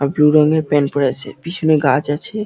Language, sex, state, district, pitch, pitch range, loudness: Bengali, male, West Bengal, Dakshin Dinajpur, 150 Hz, 140-155 Hz, -15 LUFS